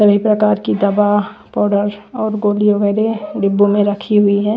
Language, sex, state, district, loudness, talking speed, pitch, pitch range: Hindi, female, Bihar, West Champaran, -15 LUFS, 170 wpm, 205 Hz, 205-210 Hz